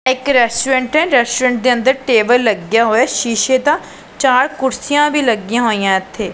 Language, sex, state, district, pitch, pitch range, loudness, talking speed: Punjabi, female, Punjab, Pathankot, 250 Hz, 230-265 Hz, -14 LUFS, 170 wpm